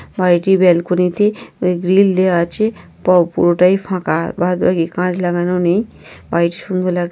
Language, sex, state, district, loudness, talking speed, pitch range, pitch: Bengali, female, West Bengal, North 24 Parganas, -15 LUFS, 125 wpm, 175-185 Hz, 180 Hz